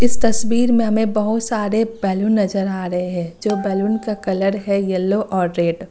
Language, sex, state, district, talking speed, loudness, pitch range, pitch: Hindi, female, Uttar Pradesh, Lucknow, 195 wpm, -19 LUFS, 190-220 Hz, 200 Hz